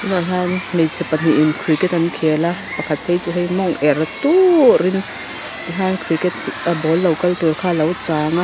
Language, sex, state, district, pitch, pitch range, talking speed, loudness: Mizo, female, Mizoram, Aizawl, 175 Hz, 160-180 Hz, 165 wpm, -17 LUFS